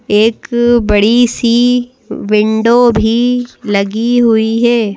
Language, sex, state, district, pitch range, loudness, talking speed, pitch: Hindi, female, Madhya Pradesh, Bhopal, 220-240 Hz, -11 LUFS, 95 wpm, 235 Hz